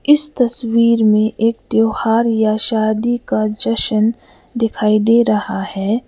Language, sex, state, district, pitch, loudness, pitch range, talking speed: Hindi, female, Sikkim, Gangtok, 225 Hz, -15 LUFS, 215-230 Hz, 130 wpm